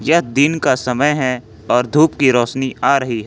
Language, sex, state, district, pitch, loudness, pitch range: Hindi, male, Jharkhand, Ranchi, 130 Hz, -15 LUFS, 120-145 Hz